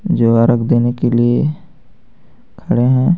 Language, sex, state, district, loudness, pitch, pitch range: Hindi, male, Jharkhand, Garhwa, -14 LUFS, 120 Hz, 120-155 Hz